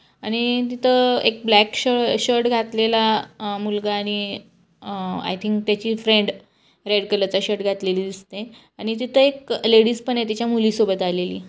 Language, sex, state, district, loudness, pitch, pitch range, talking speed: Marathi, female, Maharashtra, Chandrapur, -20 LUFS, 215 Hz, 205-235 Hz, 150 wpm